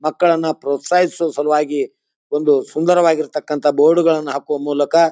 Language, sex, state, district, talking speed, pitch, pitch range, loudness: Kannada, male, Karnataka, Bijapur, 115 wpm, 155 Hz, 145-165 Hz, -17 LUFS